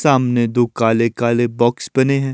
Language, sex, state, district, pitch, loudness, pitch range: Hindi, male, Himachal Pradesh, Shimla, 120 Hz, -16 LUFS, 120-130 Hz